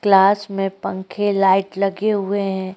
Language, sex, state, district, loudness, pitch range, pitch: Hindi, female, Uttar Pradesh, Jyotiba Phule Nagar, -19 LUFS, 190-200 Hz, 195 Hz